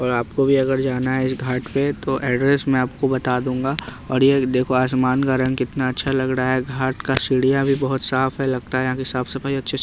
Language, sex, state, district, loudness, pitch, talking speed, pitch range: Hindi, male, Bihar, West Champaran, -20 LUFS, 130 Hz, 250 wpm, 130-135 Hz